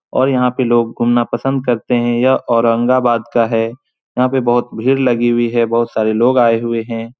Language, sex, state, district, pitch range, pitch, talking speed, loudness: Hindi, male, Bihar, Supaul, 115-125 Hz, 120 Hz, 210 wpm, -15 LUFS